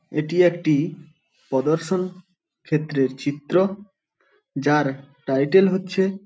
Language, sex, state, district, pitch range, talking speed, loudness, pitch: Bengali, male, West Bengal, Paschim Medinipur, 145-185 Hz, 85 wpm, -22 LUFS, 160 Hz